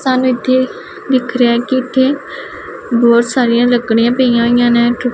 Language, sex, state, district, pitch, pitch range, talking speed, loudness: Punjabi, female, Punjab, Pathankot, 245 Hz, 235-255 Hz, 165 wpm, -13 LUFS